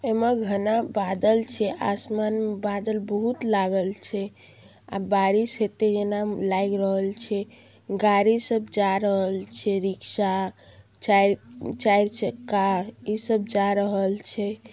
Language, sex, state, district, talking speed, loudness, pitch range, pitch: Maithili, female, Bihar, Darbhanga, 120 wpm, -24 LUFS, 195-215 Hz, 205 Hz